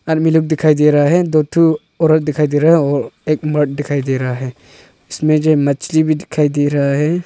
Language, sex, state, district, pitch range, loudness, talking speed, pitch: Hindi, male, Arunachal Pradesh, Longding, 145-160 Hz, -14 LUFS, 215 wpm, 150 Hz